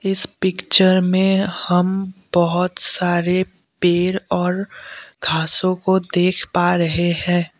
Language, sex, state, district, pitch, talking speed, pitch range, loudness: Hindi, male, Assam, Kamrup Metropolitan, 180 Hz, 110 wpm, 175-190 Hz, -18 LUFS